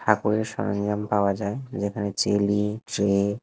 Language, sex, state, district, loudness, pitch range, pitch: Bengali, male, Odisha, Khordha, -25 LUFS, 100-105 Hz, 100 Hz